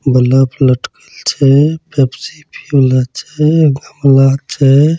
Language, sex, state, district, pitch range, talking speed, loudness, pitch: Angika, male, Bihar, Begusarai, 135-150 Hz, 110 wpm, -12 LUFS, 140 Hz